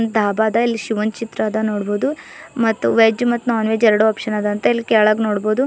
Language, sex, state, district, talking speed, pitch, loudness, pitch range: Kannada, female, Karnataka, Bidar, 180 wpm, 220 Hz, -17 LUFS, 215-230 Hz